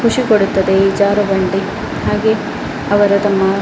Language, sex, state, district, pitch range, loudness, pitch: Kannada, female, Karnataka, Dakshina Kannada, 195-205 Hz, -14 LUFS, 200 Hz